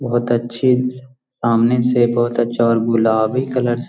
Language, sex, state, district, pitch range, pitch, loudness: Magahi, male, Bihar, Jahanabad, 115-125 Hz, 120 Hz, -17 LUFS